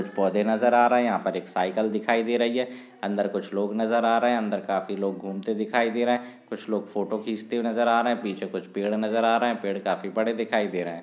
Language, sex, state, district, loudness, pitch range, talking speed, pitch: Hindi, male, Chhattisgarh, Sukma, -25 LUFS, 100-120 Hz, 270 wpm, 110 Hz